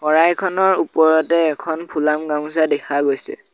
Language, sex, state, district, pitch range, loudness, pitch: Assamese, male, Assam, Sonitpur, 150-170 Hz, -17 LUFS, 160 Hz